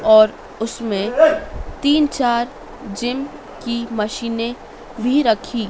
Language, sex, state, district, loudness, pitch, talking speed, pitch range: Hindi, female, Madhya Pradesh, Dhar, -19 LUFS, 235 Hz, 95 wpm, 225-270 Hz